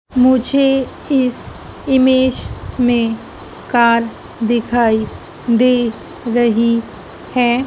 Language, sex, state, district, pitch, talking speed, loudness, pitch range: Hindi, female, Madhya Pradesh, Dhar, 245 Hz, 70 wpm, -15 LUFS, 235-260 Hz